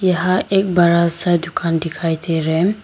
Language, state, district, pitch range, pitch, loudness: Hindi, Arunachal Pradesh, Lower Dibang Valley, 165-185 Hz, 170 Hz, -16 LUFS